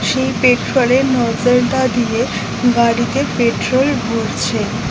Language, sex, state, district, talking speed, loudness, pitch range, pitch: Bengali, female, West Bengal, North 24 Parganas, 110 wpm, -15 LUFS, 235-260 Hz, 245 Hz